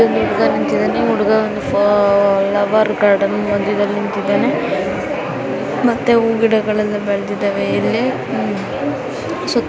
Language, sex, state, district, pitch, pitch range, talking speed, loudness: Kannada, female, Karnataka, Dharwad, 205 Hz, 200-215 Hz, 100 wpm, -16 LUFS